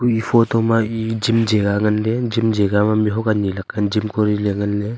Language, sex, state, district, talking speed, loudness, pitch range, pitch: Wancho, male, Arunachal Pradesh, Longding, 255 wpm, -18 LUFS, 105-115 Hz, 110 Hz